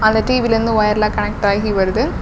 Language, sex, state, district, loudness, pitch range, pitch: Tamil, female, Tamil Nadu, Namakkal, -16 LUFS, 210-230 Hz, 220 Hz